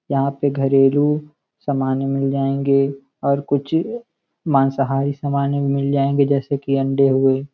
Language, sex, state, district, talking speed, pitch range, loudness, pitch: Hindi, male, Uttar Pradesh, Gorakhpur, 135 wpm, 135-140 Hz, -19 LUFS, 140 Hz